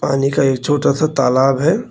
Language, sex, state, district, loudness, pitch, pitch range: Hindi, male, Uttar Pradesh, Lucknow, -15 LUFS, 140 Hz, 135-155 Hz